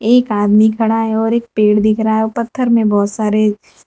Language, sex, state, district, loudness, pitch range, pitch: Hindi, female, Gujarat, Valsad, -14 LUFS, 210-230 Hz, 220 Hz